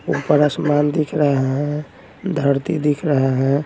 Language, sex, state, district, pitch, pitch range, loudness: Hindi, male, Bihar, Patna, 145 Hz, 140-150 Hz, -18 LUFS